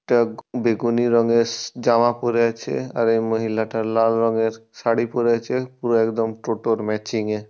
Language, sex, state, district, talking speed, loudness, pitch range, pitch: Bengali, male, West Bengal, Purulia, 160 wpm, -21 LUFS, 110-120 Hz, 115 Hz